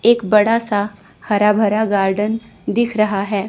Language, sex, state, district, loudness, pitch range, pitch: Hindi, female, Chandigarh, Chandigarh, -17 LUFS, 205-220 Hz, 210 Hz